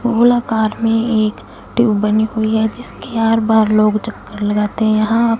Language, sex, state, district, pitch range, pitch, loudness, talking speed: Hindi, female, Punjab, Fazilka, 215-230 Hz, 220 Hz, -15 LUFS, 155 wpm